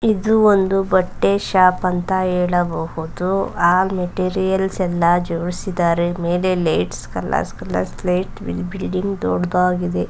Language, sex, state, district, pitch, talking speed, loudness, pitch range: Kannada, female, Karnataka, Mysore, 180 Hz, 100 wpm, -19 LUFS, 170-190 Hz